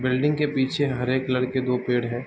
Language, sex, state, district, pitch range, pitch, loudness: Hindi, male, Uttar Pradesh, Varanasi, 125-135 Hz, 130 Hz, -24 LUFS